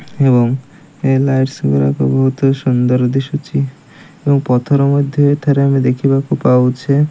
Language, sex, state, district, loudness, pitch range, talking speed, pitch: Odia, male, Odisha, Malkangiri, -14 LUFS, 125-140 Hz, 120 wpm, 135 Hz